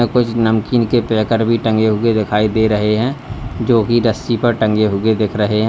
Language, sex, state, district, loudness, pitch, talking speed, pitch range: Hindi, male, Uttar Pradesh, Lalitpur, -15 LUFS, 110 Hz, 210 wpm, 110-115 Hz